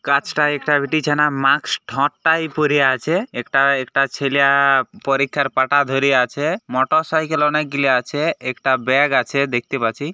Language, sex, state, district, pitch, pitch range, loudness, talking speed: Bengali, male, West Bengal, Purulia, 140 Hz, 135-150 Hz, -18 LUFS, 130 wpm